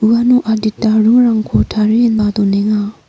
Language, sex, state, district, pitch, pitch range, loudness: Garo, female, Meghalaya, North Garo Hills, 220 Hz, 210-230 Hz, -13 LUFS